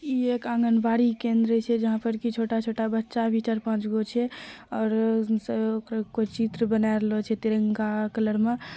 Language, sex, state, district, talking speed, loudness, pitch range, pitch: Maithili, female, Bihar, Purnia, 155 wpm, -26 LUFS, 220-230 Hz, 225 Hz